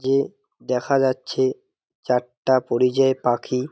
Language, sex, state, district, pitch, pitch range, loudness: Bengali, male, West Bengal, Jalpaiguri, 130 Hz, 125-135 Hz, -22 LUFS